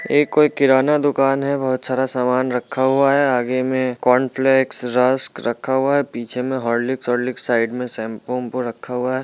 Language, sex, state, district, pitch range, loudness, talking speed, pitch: Hindi, male, Bihar, Muzaffarpur, 125-135 Hz, -19 LUFS, 175 wpm, 130 Hz